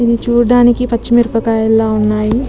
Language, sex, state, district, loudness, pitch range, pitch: Telugu, female, Telangana, Nalgonda, -12 LUFS, 220-240 Hz, 235 Hz